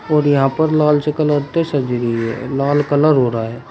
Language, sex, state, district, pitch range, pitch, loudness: Hindi, male, Uttar Pradesh, Shamli, 125-150 Hz, 145 Hz, -16 LUFS